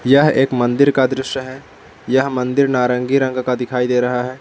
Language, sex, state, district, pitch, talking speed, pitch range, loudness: Hindi, male, Jharkhand, Palamu, 130 Hz, 205 wpm, 125-135 Hz, -16 LUFS